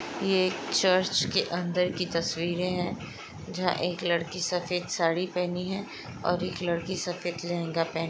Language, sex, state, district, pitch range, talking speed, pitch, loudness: Hindi, female, Chhattisgarh, Raigarh, 170-180 Hz, 150 wpm, 180 Hz, -29 LUFS